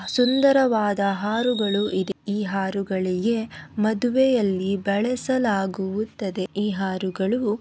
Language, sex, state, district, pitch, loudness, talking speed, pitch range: Kannada, female, Karnataka, Mysore, 205 Hz, -23 LUFS, 70 wpm, 195-235 Hz